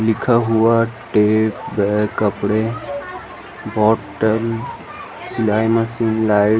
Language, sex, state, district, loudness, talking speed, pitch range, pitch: Chhattisgarhi, male, Chhattisgarh, Rajnandgaon, -18 LUFS, 100 wpm, 105-115 Hz, 110 Hz